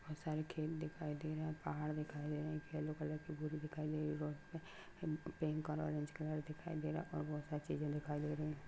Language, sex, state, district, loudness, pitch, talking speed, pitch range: Hindi, male, Bihar, Araria, -44 LUFS, 155 Hz, 255 wpm, 150-155 Hz